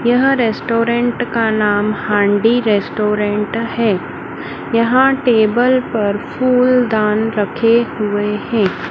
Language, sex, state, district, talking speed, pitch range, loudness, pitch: Hindi, female, Madhya Pradesh, Dhar, 95 wpm, 210-240 Hz, -15 LUFS, 225 Hz